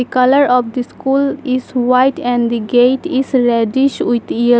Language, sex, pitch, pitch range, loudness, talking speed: English, female, 255 Hz, 245-270 Hz, -14 LUFS, 180 wpm